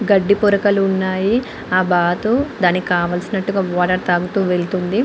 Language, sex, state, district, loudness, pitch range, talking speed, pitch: Telugu, female, Andhra Pradesh, Anantapur, -17 LUFS, 180-205 Hz, 120 wpm, 190 Hz